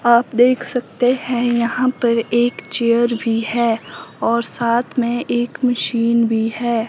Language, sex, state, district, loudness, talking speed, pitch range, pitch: Hindi, female, Himachal Pradesh, Shimla, -18 LUFS, 150 wpm, 230-245 Hz, 235 Hz